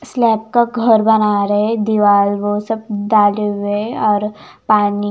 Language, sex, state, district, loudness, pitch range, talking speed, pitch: Hindi, female, Bihar, Katihar, -15 LUFS, 205-225 Hz, 155 wpm, 210 Hz